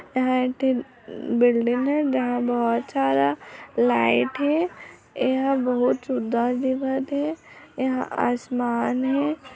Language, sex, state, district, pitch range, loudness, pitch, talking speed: Hindi, female, Chhattisgarh, Raigarh, 240-265 Hz, -23 LUFS, 255 Hz, 90 wpm